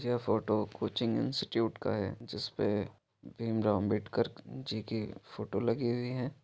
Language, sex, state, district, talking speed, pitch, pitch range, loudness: Maithili, male, Bihar, Supaul, 140 wpm, 110 Hz, 105-120 Hz, -34 LUFS